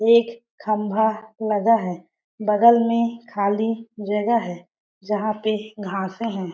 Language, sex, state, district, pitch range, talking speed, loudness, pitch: Hindi, female, Chhattisgarh, Balrampur, 205-230 Hz, 130 wpm, -22 LUFS, 215 Hz